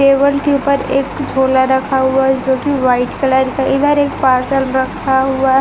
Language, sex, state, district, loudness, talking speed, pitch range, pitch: Hindi, female, Chhattisgarh, Raipur, -14 LUFS, 205 wpm, 265-275 Hz, 265 Hz